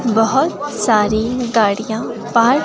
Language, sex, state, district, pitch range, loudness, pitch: Hindi, female, Himachal Pradesh, Shimla, 220-240 Hz, -16 LUFS, 230 Hz